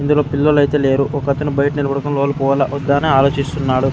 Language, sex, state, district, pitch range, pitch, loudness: Telugu, male, Andhra Pradesh, Sri Satya Sai, 140-145 Hz, 140 Hz, -16 LUFS